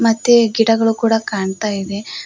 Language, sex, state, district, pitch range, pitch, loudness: Kannada, female, Karnataka, Koppal, 205-230 Hz, 225 Hz, -16 LUFS